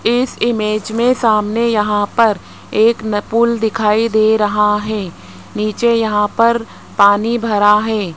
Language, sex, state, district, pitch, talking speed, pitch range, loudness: Hindi, male, Rajasthan, Jaipur, 215 Hz, 130 wpm, 210-230 Hz, -14 LUFS